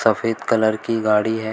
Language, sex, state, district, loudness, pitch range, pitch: Hindi, male, Uttar Pradesh, Shamli, -19 LUFS, 110-115 Hz, 110 Hz